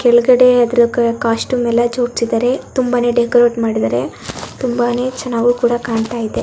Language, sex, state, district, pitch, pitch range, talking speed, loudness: Kannada, female, Karnataka, Dakshina Kannada, 240 Hz, 230-245 Hz, 130 wpm, -15 LUFS